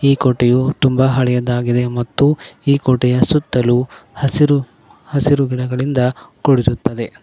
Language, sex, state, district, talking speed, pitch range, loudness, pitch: Kannada, male, Karnataka, Koppal, 100 wpm, 125-140 Hz, -16 LUFS, 130 Hz